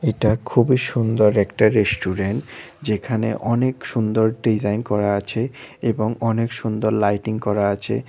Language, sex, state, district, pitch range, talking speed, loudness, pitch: Bengali, male, Tripura, West Tripura, 105-120 Hz, 125 wpm, -20 LUFS, 110 Hz